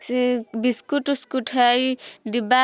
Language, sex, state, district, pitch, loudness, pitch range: Bajjika, female, Bihar, Vaishali, 250 Hz, -22 LUFS, 245-260 Hz